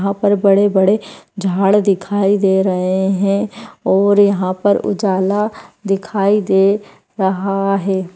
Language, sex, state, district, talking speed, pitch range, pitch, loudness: Hindi, female, Uttar Pradesh, Budaun, 120 wpm, 190-205 Hz, 195 Hz, -15 LUFS